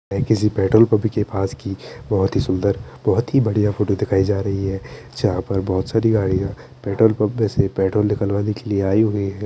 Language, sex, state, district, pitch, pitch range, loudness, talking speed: Hindi, male, Chandigarh, Chandigarh, 105 Hz, 100-110 Hz, -19 LUFS, 215 wpm